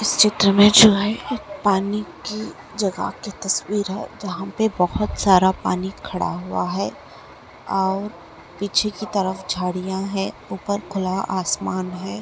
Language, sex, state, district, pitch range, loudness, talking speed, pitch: Bhojpuri, male, Uttar Pradesh, Gorakhpur, 190-205 Hz, -21 LUFS, 145 wpm, 195 Hz